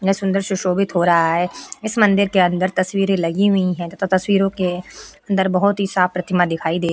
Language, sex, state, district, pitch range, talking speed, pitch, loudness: Hindi, female, Uttar Pradesh, Etah, 180-195 Hz, 215 wpm, 185 Hz, -18 LUFS